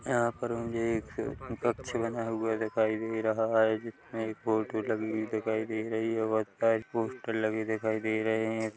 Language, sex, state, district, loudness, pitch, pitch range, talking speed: Hindi, male, Chhattisgarh, Rajnandgaon, -31 LUFS, 110 Hz, 110-115 Hz, 200 wpm